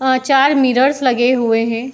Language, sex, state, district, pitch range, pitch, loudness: Hindi, female, Bihar, Saharsa, 240-270 Hz, 255 Hz, -14 LUFS